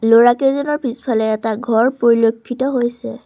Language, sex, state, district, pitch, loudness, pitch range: Assamese, female, Assam, Sonitpur, 240 Hz, -16 LUFS, 225-255 Hz